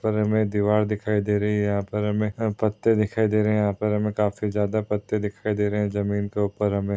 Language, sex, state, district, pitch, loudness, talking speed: Hindi, male, Maharashtra, Chandrapur, 105 Hz, -24 LUFS, 250 wpm